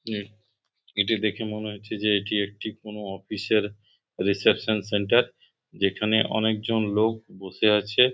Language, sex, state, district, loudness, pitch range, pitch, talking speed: Bengali, male, West Bengal, Purulia, -25 LUFS, 105-110 Hz, 105 Hz, 135 wpm